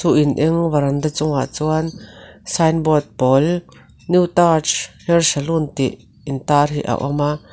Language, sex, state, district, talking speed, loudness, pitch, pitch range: Mizo, female, Mizoram, Aizawl, 145 wpm, -18 LUFS, 150 Hz, 145-165 Hz